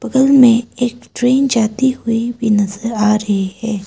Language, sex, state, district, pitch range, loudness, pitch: Hindi, female, Arunachal Pradesh, Papum Pare, 215-245 Hz, -14 LUFS, 230 Hz